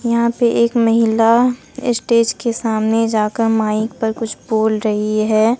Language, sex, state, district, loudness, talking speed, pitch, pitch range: Hindi, female, Bihar, Katihar, -16 LUFS, 150 wpm, 225 Hz, 220-235 Hz